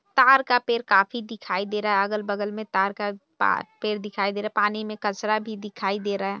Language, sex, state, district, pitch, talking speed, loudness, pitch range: Hindi, female, Bihar, Purnia, 210 Hz, 245 wpm, -24 LUFS, 200-220 Hz